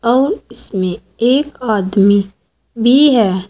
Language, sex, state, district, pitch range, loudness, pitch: Hindi, female, Uttar Pradesh, Saharanpur, 195-255 Hz, -14 LUFS, 220 Hz